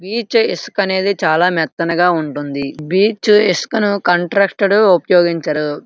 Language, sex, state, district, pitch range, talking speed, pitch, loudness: Telugu, male, Andhra Pradesh, Srikakulam, 160-200 Hz, 100 wpm, 180 Hz, -15 LUFS